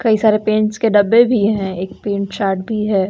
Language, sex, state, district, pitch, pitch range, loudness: Hindi, female, Bihar, West Champaran, 210 Hz, 195-220 Hz, -16 LUFS